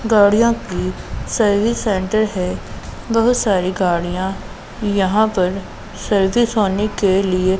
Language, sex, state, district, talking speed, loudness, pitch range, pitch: Hindi, female, Punjab, Pathankot, 110 wpm, -17 LUFS, 185-215 Hz, 200 Hz